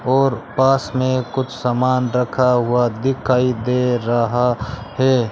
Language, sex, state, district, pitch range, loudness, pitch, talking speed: Hindi, male, Rajasthan, Bikaner, 120-130 Hz, -18 LUFS, 125 Hz, 125 wpm